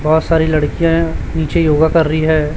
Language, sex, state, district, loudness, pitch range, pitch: Hindi, male, Chhattisgarh, Raipur, -14 LUFS, 155-165 Hz, 160 Hz